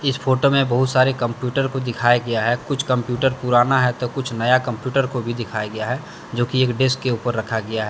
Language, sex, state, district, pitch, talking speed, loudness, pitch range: Hindi, male, Jharkhand, Deoghar, 125 Hz, 245 wpm, -20 LUFS, 120-130 Hz